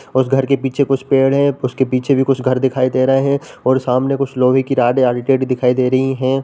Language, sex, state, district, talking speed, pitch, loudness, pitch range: Hindi, male, Bihar, Samastipur, 250 wpm, 130 Hz, -15 LUFS, 130-135 Hz